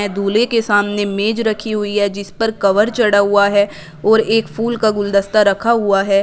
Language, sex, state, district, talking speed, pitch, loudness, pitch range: Hindi, female, Uttar Pradesh, Shamli, 200 wpm, 205 Hz, -15 LUFS, 200-220 Hz